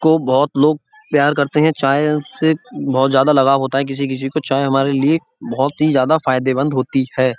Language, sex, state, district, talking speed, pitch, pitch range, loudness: Hindi, male, Uttar Pradesh, Budaun, 205 wpm, 140 Hz, 135-155 Hz, -16 LUFS